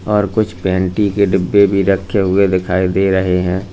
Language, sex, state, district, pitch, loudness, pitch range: Hindi, male, Uttar Pradesh, Lalitpur, 95 Hz, -14 LUFS, 95-100 Hz